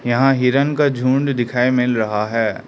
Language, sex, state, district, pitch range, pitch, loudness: Hindi, male, Arunachal Pradesh, Lower Dibang Valley, 120-135 Hz, 125 Hz, -17 LUFS